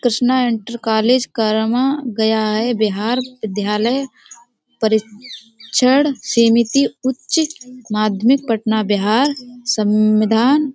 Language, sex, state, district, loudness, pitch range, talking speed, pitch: Hindi, female, Uttar Pradesh, Budaun, -17 LUFS, 220-255 Hz, 85 wpm, 235 Hz